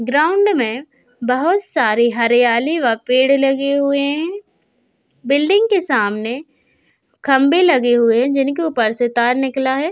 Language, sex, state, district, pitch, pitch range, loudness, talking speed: Hindi, female, Uttar Pradesh, Hamirpur, 270 Hz, 240-300 Hz, -16 LUFS, 135 wpm